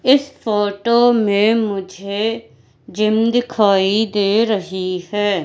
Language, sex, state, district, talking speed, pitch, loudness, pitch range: Hindi, female, Madhya Pradesh, Katni, 100 wpm, 205 Hz, -17 LUFS, 195-225 Hz